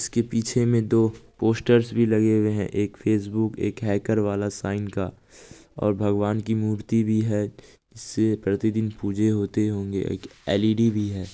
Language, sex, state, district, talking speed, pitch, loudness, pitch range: Maithili, male, Bihar, Supaul, 165 wpm, 110 Hz, -24 LUFS, 100-110 Hz